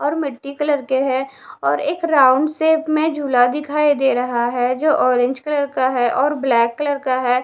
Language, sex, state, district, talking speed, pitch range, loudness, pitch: Hindi, female, Bihar, Katihar, 200 wpm, 255-295 Hz, -18 LUFS, 275 Hz